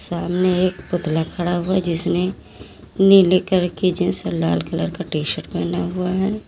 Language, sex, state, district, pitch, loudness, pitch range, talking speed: Hindi, female, Uttar Pradesh, Lalitpur, 175 Hz, -19 LUFS, 155-185 Hz, 185 wpm